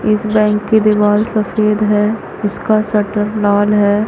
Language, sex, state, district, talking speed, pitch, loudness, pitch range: Hindi, female, Chhattisgarh, Raigarh, 145 wpm, 210 Hz, -14 LUFS, 210-215 Hz